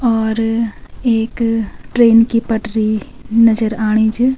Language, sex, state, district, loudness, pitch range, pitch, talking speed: Garhwali, female, Uttarakhand, Tehri Garhwal, -15 LUFS, 220-230 Hz, 225 Hz, 110 wpm